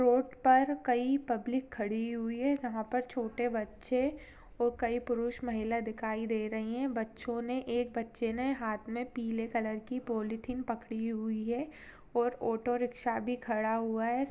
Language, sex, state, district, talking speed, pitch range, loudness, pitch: Hindi, female, Uttar Pradesh, Jyotiba Phule Nagar, 170 wpm, 225-250 Hz, -34 LUFS, 240 Hz